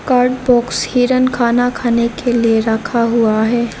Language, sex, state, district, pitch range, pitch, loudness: Hindi, female, Arunachal Pradesh, Lower Dibang Valley, 235-250 Hz, 240 Hz, -14 LUFS